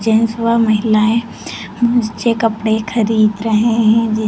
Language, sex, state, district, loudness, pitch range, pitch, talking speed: Hindi, female, Uttar Pradesh, Lalitpur, -14 LUFS, 220-230 Hz, 225 Hz, 110 wpm